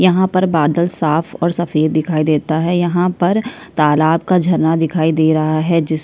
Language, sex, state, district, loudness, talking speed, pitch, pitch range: Hindi, female, Chhattisgarh, Kabirdham, -15 LUFS, 200 wpm, 165 Hz, 155-175 Hz